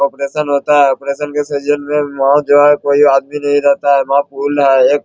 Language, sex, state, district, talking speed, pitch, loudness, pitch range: Hindi, male, Bihar, Bhagalpur, 250 wpm, 145 Hz, -12 LUFS, 140-145 Hz